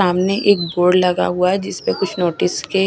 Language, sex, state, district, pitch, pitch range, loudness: Hindi, female, Chhattisgarh, Raipur, 180 Hz, 175-195 Hz, -17 LUFS